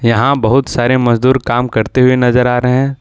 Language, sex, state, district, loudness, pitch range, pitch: Hindi, male, Jharkhand, Ranchi, -12 LUFS, 120-130 Hz, 125 Hz